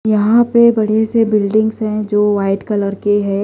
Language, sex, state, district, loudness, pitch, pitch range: Hindi, female, Delhi, New Delhi, -14 LUFS, 215 Hz, 205-220 Hz